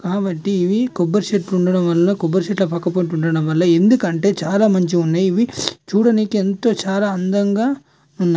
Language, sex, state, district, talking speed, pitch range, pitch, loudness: Telugu, male, Andhra Pradesh, Guntur, 145 wpm, 175-205 Hz, 190 Hz, -17 LUFS